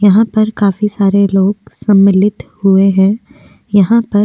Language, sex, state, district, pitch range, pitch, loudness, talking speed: Hindi, female, Uttar Pradesh, Jyotiba Phule Nagar, 195-210 Hz, 205 Hz, -11 LUFS, 155 wpm